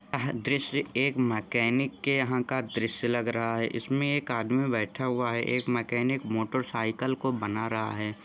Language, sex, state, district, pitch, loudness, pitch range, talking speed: Hindi, male, Jharkhand, Sahebganj, 120 Hz, -29 LUFS, 115-130 Hz, 175 wpm